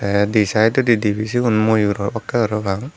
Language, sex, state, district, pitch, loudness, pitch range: Chakma, male, Tripura, Dhalai, 110 Hz, -18 LUFS, 105-115 Hz